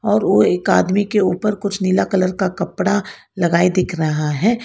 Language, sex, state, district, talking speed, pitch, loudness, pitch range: Hindi, female, Karnataka, Bangalore, 195 wpm, 185 Hz, -17 LUFS, 175-205 Hz